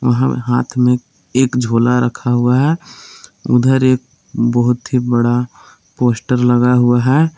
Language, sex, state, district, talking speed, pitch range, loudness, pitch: Hindi, male, Jharkhand, Palamu, 130 wpm, 120-130 Hz, -14 LUFS, 125 Hz